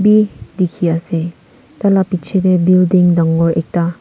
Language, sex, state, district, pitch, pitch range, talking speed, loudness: Nagamese, female, Nagaland, Kohima, 175 Hz, 165-185 Hz, 135 wpm, -14 LUFS